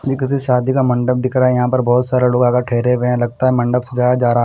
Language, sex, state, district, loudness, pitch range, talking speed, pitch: Hindi, male, Punjab, Kapurthala, -15 LUFS, 125-130 Hz, 310 wpm, 125 Hz